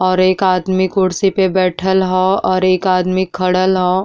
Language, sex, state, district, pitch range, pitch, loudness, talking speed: Bhojpuri, female, Uttar Pradesh, Deoria, 185-190 Hz, 185 Hz, -14 LUFS, 180 wpm